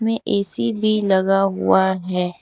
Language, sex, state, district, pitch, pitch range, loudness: Hindi, female, Jharkhand, Garhwa, 195 Hz, 185-215 Hz, -18 LUFS